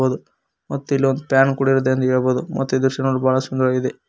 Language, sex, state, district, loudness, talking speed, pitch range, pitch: Kannada, male, Karnataka, Koppal, -19 LUFS, 205 wpm, 130-135 Hz, 130 Hz